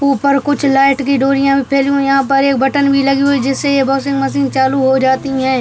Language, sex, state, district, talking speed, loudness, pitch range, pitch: Hindi, male, Bihar, Darbhanga, 255 wpm, -13 LUFS, 270-275 Hz, 275 Hz